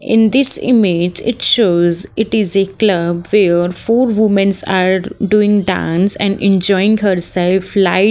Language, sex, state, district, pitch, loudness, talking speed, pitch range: English, female, Haryana, Jhajjar, 195 Hz, -13 LUFS, 150 wpm, 185-210 Hz